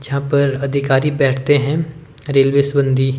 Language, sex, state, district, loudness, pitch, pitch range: Hindi, male, Himachal Pradesh, Shimla, -16 LUFS, 140 Hz, 135-145 Hz